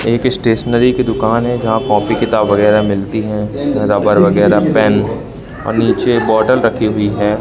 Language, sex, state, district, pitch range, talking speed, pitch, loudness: Hindi, male, Madhya Pradesh, Katni, 105-120 Hz, 170 wpm, 110 Hz, -13 LUFS